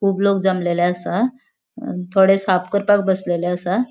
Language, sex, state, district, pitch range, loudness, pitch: Konkani, female, Goa, North and South Goa, 180-205 Hz, -18 LUFS, 190 Hz